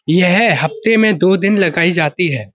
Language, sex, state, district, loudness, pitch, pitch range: Hindi, male, Uttar Pradesh, Budaun, -13 LUFS, 180 Hz, 160-200 Hz